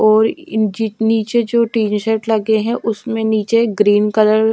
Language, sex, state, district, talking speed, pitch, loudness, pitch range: Hindi, female, Odisha, Malkangiri, 185 wpm, 220 Hz, -16 LUFS, 215-225 Hz